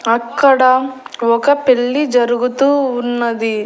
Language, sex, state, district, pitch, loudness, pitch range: Telugu, female, Andhra Pradesh, Annamaya, 250 Hz, -14 LUFS, 235-270 Hz